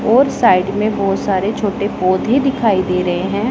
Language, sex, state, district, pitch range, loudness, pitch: Hindi, male, Punjab, Pathankot, 185-225 Hz, -15 LUFS, 205 Hz